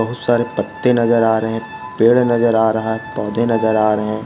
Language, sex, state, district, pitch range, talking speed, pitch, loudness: Hindi, male, Maharashtra, Solapur, 110-120 Hz, 225 wpm, 110 Hz, -16 LUFS